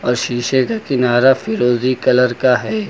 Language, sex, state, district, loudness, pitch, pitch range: Hindi, male, Uttar Pradesh, Lucknow, -15 LUFS, 125 Hz, 120-130 Hz